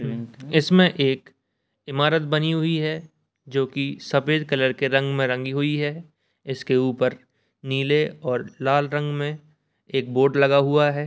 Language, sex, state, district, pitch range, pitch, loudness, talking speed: Hindi, male, Bihar, Begusarai, 135-150 Hz, 140 Hz, -22 LUFS, 150 wpm